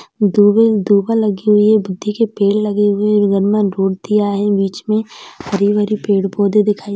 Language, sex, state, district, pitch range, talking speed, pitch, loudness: Hindi, female, Uttar Pradesh, Jyotiba Phule Nagar, 200-210 Hz, 180 wpm, 205 Hz, -15 LUFS